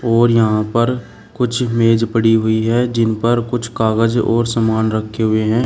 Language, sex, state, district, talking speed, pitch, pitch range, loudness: Hindi, male, Uttar Pradesh, Shamli, 180 wpm, 115 Hz, 110-120 Hz, -16 LUFS